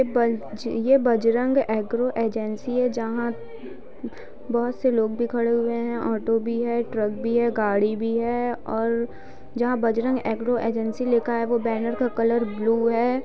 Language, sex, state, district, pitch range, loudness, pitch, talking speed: Hindi, female, Bihar, East Champaran, 225-240 Hz, -24 LUFS, 235 Hz, 165 wpm